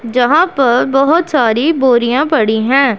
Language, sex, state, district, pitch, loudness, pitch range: Hindi, female, Punjab, Pathankot, 260 Hz, -12 LUFS, 240-300 Hz